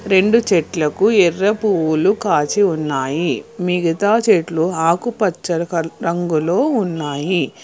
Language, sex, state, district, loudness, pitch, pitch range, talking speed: Telugu, female, Telangana, Hyderabad, -17 LUFS, 175 Hz, 160-200 Hz, 85 wpm